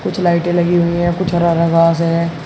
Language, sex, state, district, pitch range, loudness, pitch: Hindi, male, Uttar Pradesh, Shamli, 165-175 Hz, -14 LUFS, 170 Hz